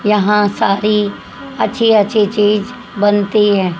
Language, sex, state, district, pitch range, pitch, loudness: Hindi, female, Haryana, Charkhi Dadri, 205-215 Hz, 210 Hz, -14 LUFS